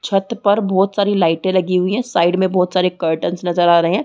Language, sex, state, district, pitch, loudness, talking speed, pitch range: Hindi, female, Chhattisgarh, Rajnandgaon, 185 Hz, -16 LUFS, 250 wpm, 175-200 Hz